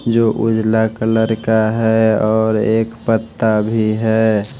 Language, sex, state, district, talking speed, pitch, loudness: Hindi, male, Odisha, Malkangiri, 130 wpm, 110 Hz, -15 LUFS